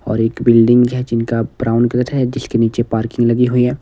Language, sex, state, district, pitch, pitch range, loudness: Hindi, male, Himachal Pradesh, Shimla, 120 Hz, 115-125 Hz, -15 LUFS